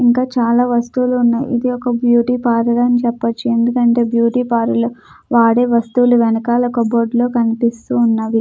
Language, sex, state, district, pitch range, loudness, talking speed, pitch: Telugu, female, Andhra Pradesh, Krishna, 235-245 Hz, -15 LUFS, 155 wpm, 240 Hz